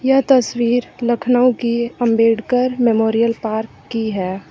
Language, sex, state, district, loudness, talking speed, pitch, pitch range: Hindi, female, Uttar Pradesh, Lucknow, -17 LUFS, 120 wpm, 235 Hz, 225-245 Hz